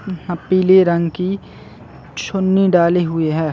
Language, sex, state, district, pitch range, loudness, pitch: Hindi, male, Uttar Pradesh, Varanasi, 170-190 Hz, -16 LUFS, 180 Hz